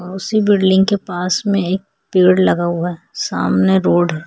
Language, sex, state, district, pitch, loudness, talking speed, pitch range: Hindi, female, Uttar Pradesh, Etah, 180 Hz, -16 LUFS, 185 wpm, 170-195 Hz